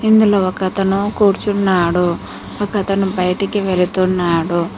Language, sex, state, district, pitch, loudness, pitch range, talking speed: Telugu, female, Telangana, Mahabubabad, 190 Hz, -16 LUFS, 180-200 Hz, 75 wpm